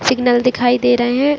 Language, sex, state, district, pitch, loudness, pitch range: Hindi, female, Chhattisgarh, Raigarh, 245 Hz, -15 LUFS, 245-250 Hz